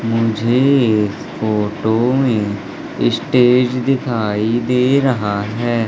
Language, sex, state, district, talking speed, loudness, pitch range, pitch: Hindi, male, Madhya Pradesh, Katni, 90 wpm, -16 LUFS, 105-125 Hz, 115 Hz